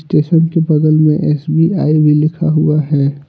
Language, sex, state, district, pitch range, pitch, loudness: Hindi, male, Jharkhand, Deoghar, 150-160 Hz, 155 Hz, -12 LUFS